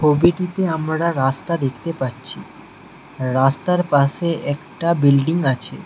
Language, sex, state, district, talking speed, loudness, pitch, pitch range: Bengali, male, West Bengal, Alipurduar, 100 wpm, -19 LUFS, 155 Hz, 135-170 Hz